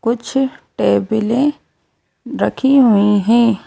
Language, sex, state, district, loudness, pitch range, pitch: Hindi, female, Madhya Pradesh, Bhopal, -15 LUFS, 210-265 Hz, 230 Hz